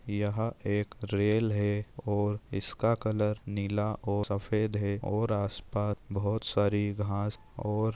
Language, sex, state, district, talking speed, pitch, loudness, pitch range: Hindi, male, Maharashtra, Dhule, 130 wpm, 105 Hz, -31 LUFS, 100-110 Hz